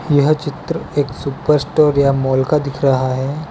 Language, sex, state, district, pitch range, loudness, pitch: Hindi, male, Gujarat, Valsad, 135-150 Hz, -16 LUFS, 145 Hz